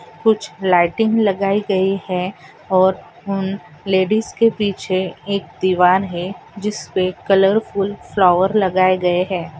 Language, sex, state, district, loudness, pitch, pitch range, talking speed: Hindi, female, Andhra Pradesh, Anantapur, -18 LUFS, 190 Hz, 180-200 Hz, 125 wpm